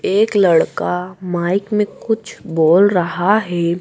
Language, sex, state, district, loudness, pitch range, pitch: Hindi, female, Madhya Pradesh, Dhar, -16 LUFS, 175-205 Hz, 185 Hz